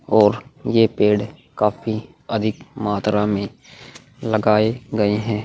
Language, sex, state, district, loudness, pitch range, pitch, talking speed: Hindi, male, Goa, North and South Goa, -20 LUFS, 105-115 Hz, 110 Hz, 110 wpm